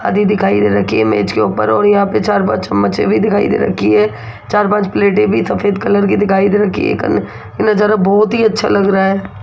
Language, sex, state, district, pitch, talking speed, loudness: Hindi, female, Rajasthan, Jaipur, 195 Hz, 250 wpm, -13 LUFS